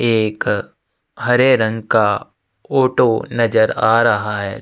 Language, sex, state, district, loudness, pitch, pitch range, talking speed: Hindi, male, Chhattisgarh, Sukma, -16 LUFS, 115 Hz, 110-125 Hz, 115 wpm